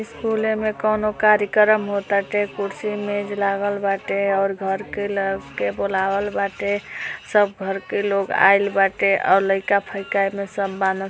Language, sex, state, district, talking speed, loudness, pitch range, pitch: Hindi, female, Uttar Pradesh, Gorakhpur, 155 wpm, -21 LUFS, 195-205 Hz, 200 Hz